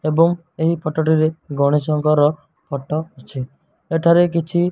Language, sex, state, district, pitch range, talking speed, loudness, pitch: Odia, male, Odisha, Malkangiri, 150-165 Hz, 125 wpm, -18 LUFS, 155 Hz